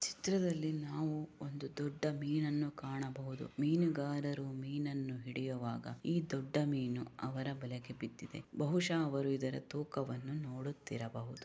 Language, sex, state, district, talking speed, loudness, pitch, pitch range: Kannada, female, Karnataka, Raichur, 110 wpm, -39 LUFS, 140 Hz, 130-150 Hz